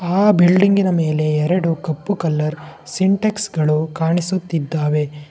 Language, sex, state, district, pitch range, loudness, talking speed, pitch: Kannada, male, Karnataka, Bangalore, 155-185 Hz, -18 LUFS, 100 wpm, 165 Hz